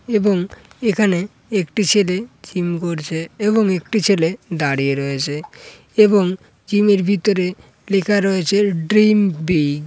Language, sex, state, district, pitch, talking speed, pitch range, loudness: Bengali, female, West Bengal, Malda, 195 Hz, 120 wpm, 170-205 Hz, -18 LUFS